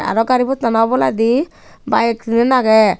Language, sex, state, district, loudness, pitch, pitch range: Chakma, female, Tripura, Unakoti, -15 LUFS, 230 Hz, 225-255 Hz